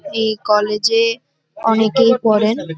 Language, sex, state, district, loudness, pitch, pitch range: Bengali, female, West Bengal, North 24 Parganas, -15 LUFS, 220 Hz, 215-275 Hz